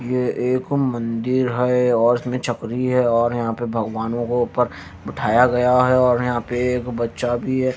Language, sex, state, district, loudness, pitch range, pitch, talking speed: Hindi, male, Haryana, Jhajjar, -20 LUFS, 120-125 Hz, 125 Hz, 185 wpm